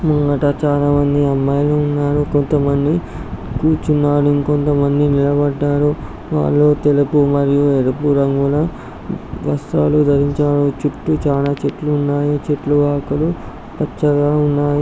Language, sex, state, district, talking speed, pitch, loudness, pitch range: Telugu, male, Andhra Pradesh, Chittoor, 90 wpm, 145 Hz, -16 LUFS, 140-145 Hz